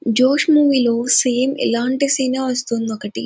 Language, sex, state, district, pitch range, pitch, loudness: Telugu, female, Andhra Pradesh, Anantapur, 235-265 Hz, 250 Hz, -17 LUFS